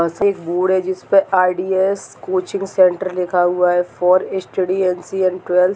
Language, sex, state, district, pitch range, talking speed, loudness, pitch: Hindi, male, Bihar, Jahanabad, 180-190 Hz, 175 wpm, -17 LUFS, 185 Hz